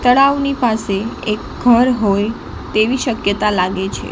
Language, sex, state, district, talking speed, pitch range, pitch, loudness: Gujarati, female, Gujarat, Gandhinagar, 130 wpm, 205-245 Hz, 225 Hz, -16 LUFS